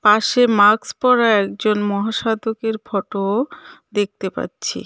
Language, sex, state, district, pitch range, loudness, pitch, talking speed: Bengali, female, West Bengal, Cooch Behar, 205-225 Hz, -18 LUFS, 215 Hz, 110 wpm